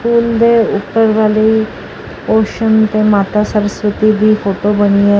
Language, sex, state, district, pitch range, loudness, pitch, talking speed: Punjabi, female, Karnataka, Bangalore, 210-220 Hz, -12 LUFS, 215 Hz, 150 wpm